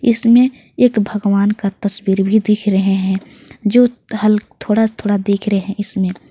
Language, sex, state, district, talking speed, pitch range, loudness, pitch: Hindi, female, Jharkhand, Garhwa, 160 wpm, 200-220 Hz, -16 LUFS, 210 Hz